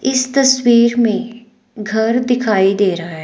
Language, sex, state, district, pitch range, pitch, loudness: Hindi, female, Himachal Pradesh, Shimla, 210-245 Hz, 235 Hz, -14 LUFS